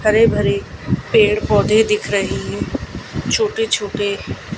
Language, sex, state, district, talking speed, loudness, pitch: Hindi, female, Gujarat, Gandhinagar, 120 wpm, -17 LUFS, 220 Hz